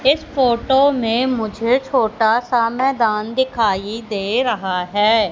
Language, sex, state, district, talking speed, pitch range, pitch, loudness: Hindi, female, Madhya Pradesh, Katni, 125 wpm, 215-260 Hz, 230 Hz, -18 LUFS